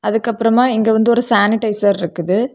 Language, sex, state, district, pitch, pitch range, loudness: Tamil, female, Tamil Nadu, Kanyakumari, 225 Hz, 205-235 Hz, -15 LUFS